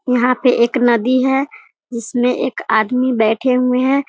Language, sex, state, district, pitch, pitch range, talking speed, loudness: Hindi, female, Bihar, Muzaffarpur, 250 Hz, 235-255 Hz, 160 wpm, -15 LUFS